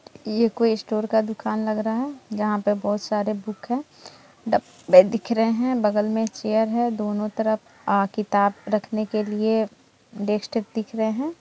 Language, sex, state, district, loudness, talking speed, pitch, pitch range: Hindi, female, Bihar, East Champaran, -23 LUFS, 175 wpm, 220 Hz, 210-225 Hz